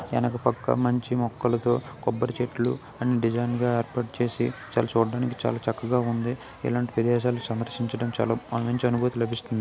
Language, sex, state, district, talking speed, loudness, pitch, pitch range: Telugu, male, Telangana, Nalgonda, 125 wpm, -26 LUFS, 120 Hz, 115-125 Hz